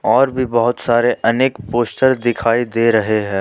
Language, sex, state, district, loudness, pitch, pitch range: Hindi, male, Jharkhand, Ranchi, -16 LUFS, 120 Hz, 115-125 Hz